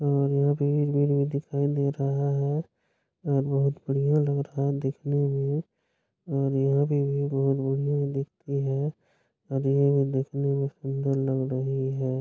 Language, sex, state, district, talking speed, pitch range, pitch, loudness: Hindi, female, Bihar, Bhagalpur, 150 wpm, 135-145 Hz, 140 Hz, -26 LUFS